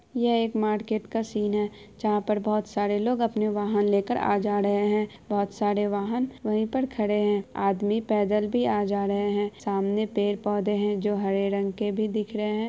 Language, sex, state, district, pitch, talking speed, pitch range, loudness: Hindi, female, Bihar, Araria, 210 Hz, 205 wpm, 205-215 Hz, -26 LUFS